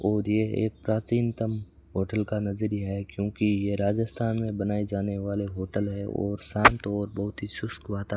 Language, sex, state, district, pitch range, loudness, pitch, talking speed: Hindi, male, Rajasthan, Bikaner, 100-110 Hz, -28 LUFS, 105 Hz, 185 wpm